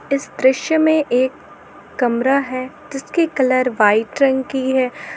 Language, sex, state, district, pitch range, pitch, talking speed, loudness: Hindi, female, Jharkhand, Garhwa, 255-275 Hz, 260 Hz, 140 wpm, -17 LUFS